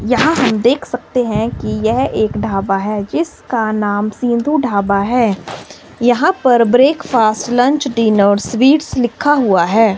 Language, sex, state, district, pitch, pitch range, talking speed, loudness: Hindi, male, Himachal Pradesh, Shimla, 235 Hz, 210-255 Hz, 145 wpm, -14 LUFS